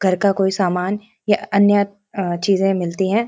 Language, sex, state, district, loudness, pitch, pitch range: Hindi, female, Uttarakhand, Uttarkashi, -18 LUFS, 195 Hz, 190-205 Hz